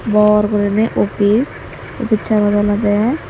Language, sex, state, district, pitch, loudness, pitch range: Chakma, female, Tripura, Unakoti, 210 Hz, -15 LUFS, 205-220 Hz